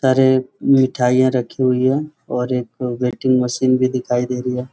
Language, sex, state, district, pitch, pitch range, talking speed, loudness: Hindi, male, Jharkhand, Sahebganj, 130 Hz, 125-130 Hz, 165 wpm, -18 LUFS